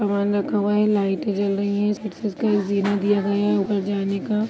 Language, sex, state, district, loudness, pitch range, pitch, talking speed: Hindi, female, Uttar Pradesh, Jyotiba Phule Nagar, -22 LUFS, 200-210 Hz, 205 Hz, 185 wpm